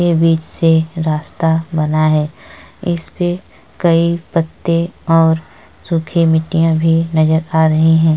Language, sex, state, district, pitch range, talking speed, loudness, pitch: Hindi, female, Uttar Pradesh, Etah, 160-165 Hz, 130 wpm, -15 LUFS, 165 Hz